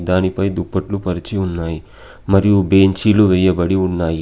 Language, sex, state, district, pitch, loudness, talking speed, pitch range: Telugu, male, Telangana, Adilabad, 95 Hz, -16 LUFS, 115 wpm, 90-100 Hz